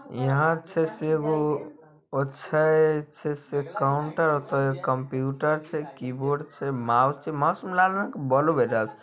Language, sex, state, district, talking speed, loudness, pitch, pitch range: Maithili, male, Bihar, Samastipur, 145 wpm, -25 LUFS, 150 Hz, 135-155 Hz